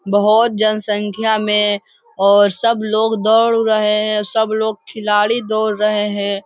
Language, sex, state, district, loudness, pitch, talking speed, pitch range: Hindi, female, Bihar, Jamui, -15 LUFS, 215 Hz, 140 wpm, 210-220 Hz